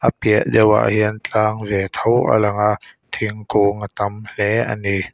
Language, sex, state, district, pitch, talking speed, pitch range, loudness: Mizo, male, Mizoram, Aizawl, 105 Hz, 175 wpm, 100-110 Hz, -18 LUFS